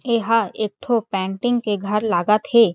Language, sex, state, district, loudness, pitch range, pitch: Chhattisgarhi, female, Chhattisgarh, Jashpur, -20 LUFS, 205-235 Hz, 220 Hz